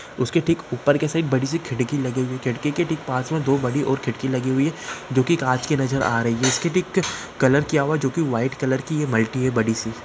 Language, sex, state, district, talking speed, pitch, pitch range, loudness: Hindi, male, Uttar Pradesh, Ghazipur, 255 wpm, 135 Hz, 125-155 Hz, -22 LUFS